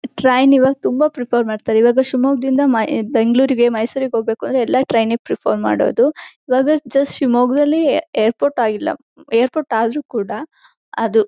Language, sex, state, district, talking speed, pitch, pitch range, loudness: Kannada, female, Karnataka, Shimoga, 120 wpm, 255 Hz, 230-275 Hz, -16 LUFS